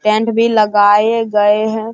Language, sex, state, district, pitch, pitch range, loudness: Hindi, male, Bihar, Araria, 215 Hz, 210-225 Hz, -12 LUFS